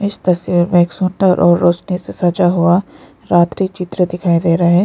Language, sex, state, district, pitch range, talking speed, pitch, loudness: Hindi, female, Arunachal Pradesh, Lower Dibang Valley, 175-185 Hz, 200 wpm, 175 Hz, -14 LUFS